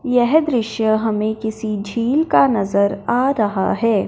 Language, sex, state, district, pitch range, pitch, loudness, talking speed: Hindi, male, Punjab, Fazilka, 215-250 Hz, 220 Hz, -18 LUFS, 145 wpm